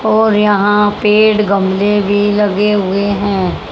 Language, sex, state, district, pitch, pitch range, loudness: Hindi, male, Haryana, Rohtak, 205 Hz, 200-210 Hz, -12 LUFS